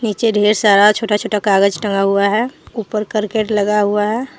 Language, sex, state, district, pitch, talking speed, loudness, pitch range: Hindi, female, Jharkhand, Deoghar, 210 Hz, 190 wpm, -15 LUFS, 205-220 Hz